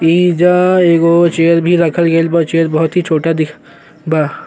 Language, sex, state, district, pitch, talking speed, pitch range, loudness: Bhojpuri, male, Uttar Pradesh, Gorakhpur, 165 Hz, 175 wpm, 160-170 Hz, -12 LUFS